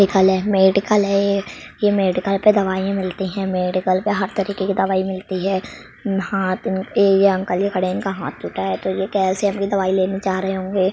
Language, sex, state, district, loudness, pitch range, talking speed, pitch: Hindi, female, Uttar Pradesh, Budaun, -19 LUFS, 185-200 Hz, 190 wpm, 190 Hz